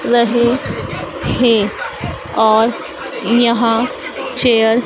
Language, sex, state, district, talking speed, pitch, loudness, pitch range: Hindi, female, Madhya Pradesh, Dhar, 75 wpm, 235 Hz, -15 LUFS, 225-240 Hz